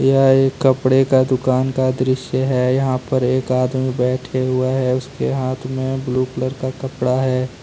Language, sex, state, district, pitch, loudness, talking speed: Hindi, male, Jharkhand, Deoghar, 130 Hz, -18 LUFS, 180 wpm